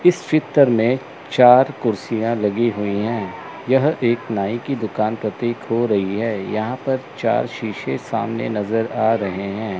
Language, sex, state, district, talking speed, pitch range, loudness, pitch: Hindi, male, Chandigarh, Chandigarh, 160 wpm, 105-125 Hz, -20 LUFS, 115 Hz